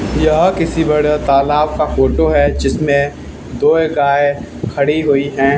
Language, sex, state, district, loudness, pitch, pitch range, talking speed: Hindi, male, Haryana, Charkhi Dadri, -14 LUFS, 145 Hz, 140-155 Hz, 140 wpm